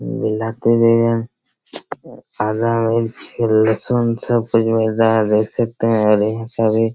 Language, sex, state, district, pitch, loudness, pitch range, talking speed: Hindi, male, Chhattisgarh, Raigarh, 115 Hz, -17 LUFS, 110-115 Hz, 105 wpm